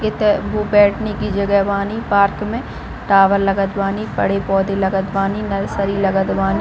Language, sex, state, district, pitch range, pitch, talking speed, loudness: Hindi, female, Chhattisgarh, Bilaspur, 195-205 Hz, 200 Hz, 165 wpm, -17 LUFS